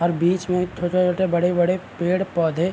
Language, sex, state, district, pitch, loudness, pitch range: Hindi, male, Bihar, Vaishali, 180 Hz, -21 LUFS, 175-185 Hz